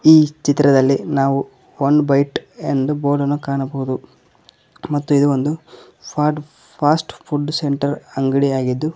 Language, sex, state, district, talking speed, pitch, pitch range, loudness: Kannada, male, Karnataka, Koppal, 100 wpm, 145 Hz, 135-150 Hz, -18 LUFS